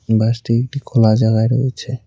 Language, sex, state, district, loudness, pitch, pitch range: Bengali, male, West Bengal, Cooch Behar, -16 LUFS, 115 Hz, 110-125 Hz